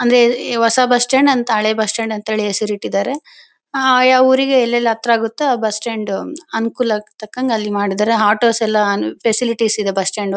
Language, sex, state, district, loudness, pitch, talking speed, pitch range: Kannada, female, Karnataka, Bellary, -16 LUFS, 225 Hz, 140 wpm, 215-245 Hz